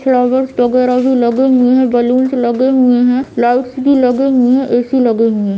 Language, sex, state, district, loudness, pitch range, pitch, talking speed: Hindi, female, Bihar, Bhagalpur, -12 LUFS, 245-260 Hz, 250 Hz, 205 wpm